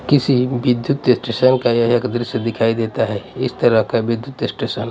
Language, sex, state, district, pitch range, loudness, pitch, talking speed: Hindi, male, Punjab, Pathankot, 115-125 Hz, -18 LUFS, 120 Hz, 195 wpm